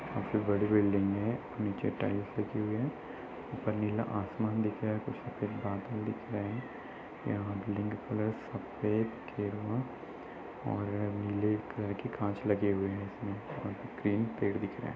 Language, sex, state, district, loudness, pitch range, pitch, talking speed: Hindi, male, Uttar Pradesh, Jyotiba Phule Nagar, -35 LUFS, 100-110 Hz, 105 Hz, 170 wpm